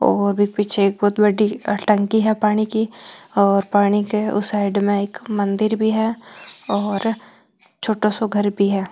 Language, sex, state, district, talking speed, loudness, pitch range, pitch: Marwari, female, Rajasthan, Nagaur, 175 wpm, -19 LUFS, 200-215 Hz, 205 Hz